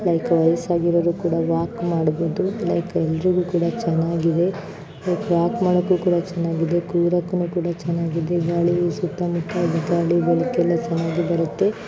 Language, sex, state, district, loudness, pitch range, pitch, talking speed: Kannada, female, Karnataka, Bijapur, -21 LUFS, 165-175 Hz, 170 Hz, 115 wpm